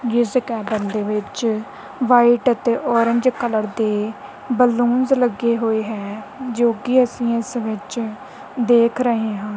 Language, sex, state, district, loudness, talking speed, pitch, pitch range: Punjabi, female, Punjab, Kapurthala, -19 LUFS, 130 wpm, 235 Hz, 215-245 Hz